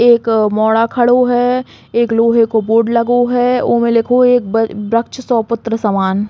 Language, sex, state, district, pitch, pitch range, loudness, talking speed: Bundeli, female, Uttar Pradesh, Hamirpur, 230 Hz, 225-245 Hz, -13 LUFS, 170 wpm